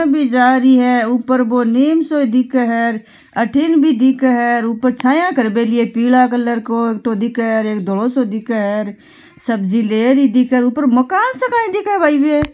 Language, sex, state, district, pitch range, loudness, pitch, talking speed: Marwari, female, Rajasthan, Nagaur, 230-275 Hz, -14 LUFS, 250 Hz, 125 wpm